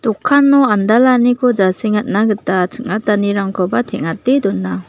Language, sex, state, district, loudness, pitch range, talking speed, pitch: Garo, female, Meghalaya, West Garo Hills, -14 LUFS, 190-245 Hz, 75 wpm, 210 Hz